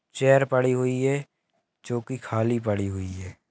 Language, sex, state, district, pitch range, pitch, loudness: Hindi, male, Maharashtra, Sindhudurg, 100-130 Hz, 120 Hz, -25 LUFS